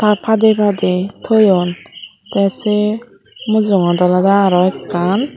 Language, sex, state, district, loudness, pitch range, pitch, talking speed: Chakma, female, Tripura, Dhalai, -14 LUFS, 185-215 Hz, 200 Hz, 100 wpm